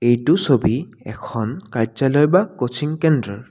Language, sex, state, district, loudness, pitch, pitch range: Assamese, male, Assam, Kamrup Metropolitan, -19 LUFS, 135 Hz, 120-155 Hz